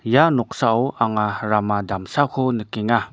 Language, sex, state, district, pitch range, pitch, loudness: Garo, male, Meghalaya, North Garo Hills, 105-130 Hz, 115 Hz, -20 LUFS